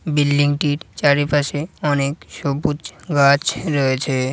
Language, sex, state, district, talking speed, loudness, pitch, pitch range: Bengali, male, West Bengal, Jhargram, 110 wpm, -19 LUFS, 145 Hz, 140-145 Hz